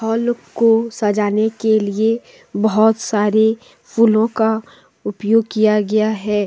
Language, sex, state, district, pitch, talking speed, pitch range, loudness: Hindi, female, Jharkhand, Deoghar, 220 Hz, 120 wpm, 210-225 Hz, -17 LUFS